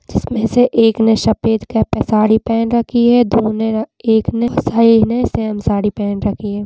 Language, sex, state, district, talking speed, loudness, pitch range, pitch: Hindi, female, Chhattisgarh, Balrampur, 200 wpm, -14 LUFS, 215-230 Hz, 225 Hz